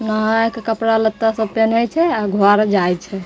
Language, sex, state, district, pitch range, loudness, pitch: Maithili, female, Bihar, Begusarai, 205-225 Hz, -16 LUFS, 220 Hz